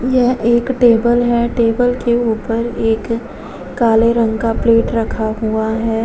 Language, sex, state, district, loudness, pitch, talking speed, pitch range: Hindi, female, Uttar Pradesh, Muzaffarnagar, -15 LUFS, 230 Hz, 150 wpm, 225-240 Hz